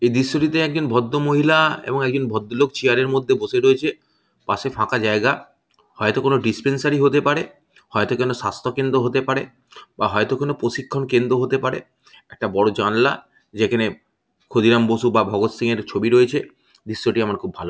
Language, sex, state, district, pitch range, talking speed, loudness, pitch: Bengali, male, West Bengal, Malda, 120-140 Hz, 175 wpm, -20 LUFS, 130 Hz